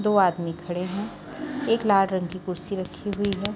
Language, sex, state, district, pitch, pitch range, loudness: Hindi, female, Haryana, Charkhi Dadri, 195 Hz, 180-210 Hz, -26 LUFS